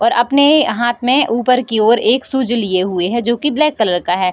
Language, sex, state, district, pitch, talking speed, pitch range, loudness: Hindi, female, Bihar, Darbhanga, 235 Hz, 250 wpm, 220-260 Hz, -14 LUFS